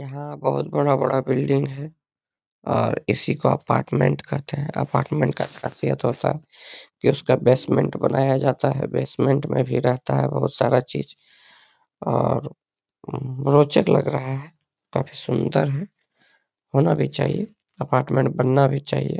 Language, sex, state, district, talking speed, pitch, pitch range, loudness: Hindi, male, Bihar, Lakhisarai, 155 wpm, 140 Hz, 130-145 Hz, -22 LUFS